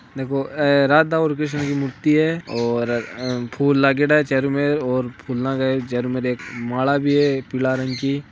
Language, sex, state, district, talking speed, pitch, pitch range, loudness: Hindi, male, Rajasthan, Nagaur, 195 wpm, 135 Hz, 125-145 Hz, -20 LUFS